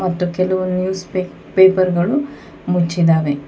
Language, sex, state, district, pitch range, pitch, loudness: Kannada, female, Karnataka, Bangalore, 175-185 Hz, 185 Hz, -17 LUFS